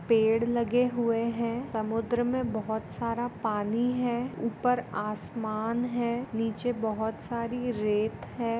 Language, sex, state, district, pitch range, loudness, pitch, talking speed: Hindi, female, Goa, North and South Goa, 220-240 Hz, -30 LUFS, 230 Hz, 125 wpm